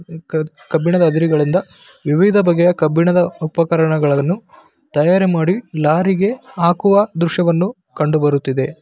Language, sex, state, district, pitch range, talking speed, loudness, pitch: Kannada, male, Karnataka, Bellary, 155-180 Hz, 90 wpm, -16 LUFS, 170 Hz